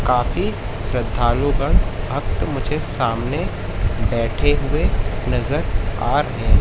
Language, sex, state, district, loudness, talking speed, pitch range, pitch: Hindi, male, Madhya Pradesh, Katni, -20 LUFS, 110 wpm, 95-120 Hz, 110 Hz